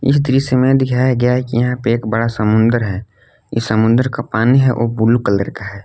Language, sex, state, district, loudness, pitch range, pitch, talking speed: Hindi, male, Jharkhand, Palamu, -15 LUFS, 110-125 Hz, 115 Hz, 235 wpm